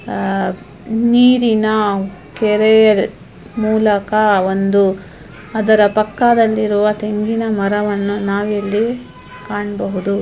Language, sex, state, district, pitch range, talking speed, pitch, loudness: Kannada, female, Karnataka, Dharwad, 200-220 Hz, 70 wpm, 210 Hz, -15 LUFS